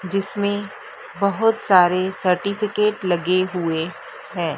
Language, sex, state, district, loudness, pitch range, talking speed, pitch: Hindi, female, Madhya Pradesh, Dhar, -20 LUFS, 180-205 Hz, 90 wpm, 190 Hz